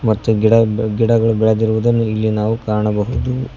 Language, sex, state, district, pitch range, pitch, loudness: Kannada, male, Karnataka, Koppal, 110-115 Hz, 110 Hz, -16 LUFS